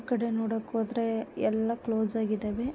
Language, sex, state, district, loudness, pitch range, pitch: Kannada, female, Karnataka, Mysore, -30 LUFS, 220-230 Hz, 225 Hz